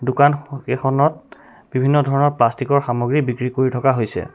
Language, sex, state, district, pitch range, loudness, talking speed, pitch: Assamese, male, Assam, Sonitpur, 125-145 Hz, -18 LUFS, 150 wpm, 135 Hz